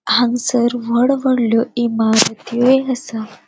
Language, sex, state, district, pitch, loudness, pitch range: Konkani, female, Goa, North and South Goa, 240 Hz, -16 LUFS, 230-250 Hz